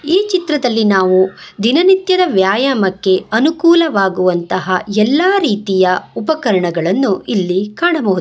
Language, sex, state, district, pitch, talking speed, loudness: Kannada, female, Karnataka, Bangalore, 210 Hz, 80 wpm, -13 LUFS